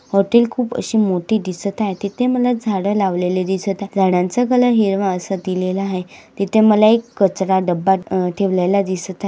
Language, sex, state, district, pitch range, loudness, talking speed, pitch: Marathi, female, Maharashtra, Dhule, 185-220 Hz, -17 LUFS, 170 wpm, 195 Hz